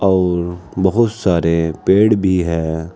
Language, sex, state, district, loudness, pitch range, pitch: Hindi, male, Uttar Pradesh, Saharanpur, -16 LUFS, 85-95 Hz, 90 Hz